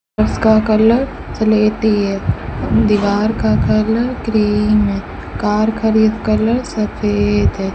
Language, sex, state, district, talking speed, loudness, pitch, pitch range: Hindi, female, Rajasthan, Bikaner, 115 wpm, -15 LUFS, 215 Hz, 205-220 Hz